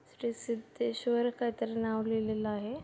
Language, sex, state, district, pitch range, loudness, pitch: Marathi, female, Maharashtra, Solapur, 220-240 Hz, -34 LUFS, 230 Hz